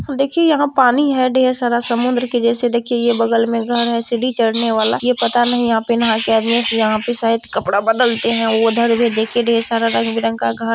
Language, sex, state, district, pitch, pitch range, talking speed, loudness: Maithili, female, Bihar, Purnia, 235 Hz, 225-245 Hz, 235 wpm, -15 LUFS